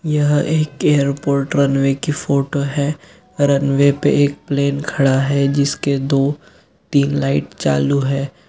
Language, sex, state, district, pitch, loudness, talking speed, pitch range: Hindi, male, Jharkhand, Sahebganj, 140 Hz, -17 LUFS, 135 wpm, 140-145 Hz